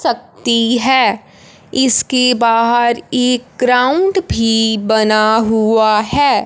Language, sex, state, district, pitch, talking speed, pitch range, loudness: Hindi, male, Punjab, Fazilka, 235 Hz, 95 wpm, 225-250 Hz, -13 LUFS